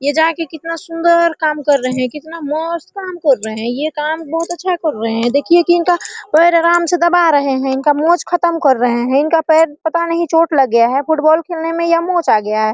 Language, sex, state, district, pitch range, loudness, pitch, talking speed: Hindi, female, Bihar, Araria, 280-335 Hz, -14 LUFS, 320 Hz, 210 wpm